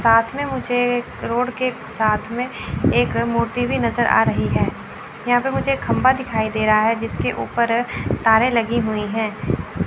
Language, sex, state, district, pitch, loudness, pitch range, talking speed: Hindi, female, Chandigarh, Chandigarh, 235 Hz, -20 LUFS, 220-245 Hz, 175 wpm